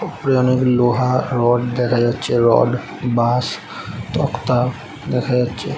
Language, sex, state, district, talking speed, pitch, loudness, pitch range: Bengali, male, West Bengal, Jhargram, 115 wpm, 125 Hz, -18 LUFS, 120-125 Hz